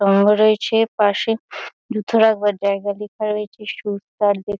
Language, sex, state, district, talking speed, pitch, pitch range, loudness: Bengali, female, West Bengal, Kolkata, 155 wpm, 210 Hz, 205-220 Hz, -19 LUFS